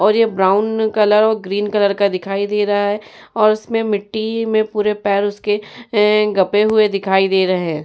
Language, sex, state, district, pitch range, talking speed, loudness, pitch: Hindi, female, Uttar Pradesh, Jyotiba Phule Nagar, 200-215 Hz, 200 wpm, -16 LUFS, 210 Hz